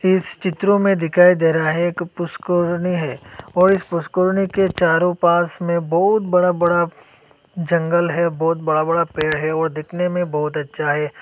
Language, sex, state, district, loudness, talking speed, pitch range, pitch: Hindi, male, Assam, Hailakandi, -18 LUFS, 175 wpm, 160-180 Hz, 170 Hz